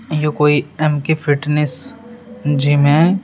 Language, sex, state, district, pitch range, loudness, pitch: Hindi, male, Uttar Pradesh, Shamli, 145-175 Hz, -16 LUFS, 150 Hz